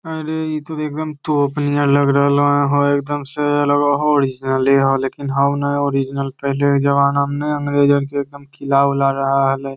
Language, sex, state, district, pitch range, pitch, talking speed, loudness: Magahi, male, Bihar, Lakhisarai, 140-145 Hz, 140 Hz, 205 wpm, -17 LUFS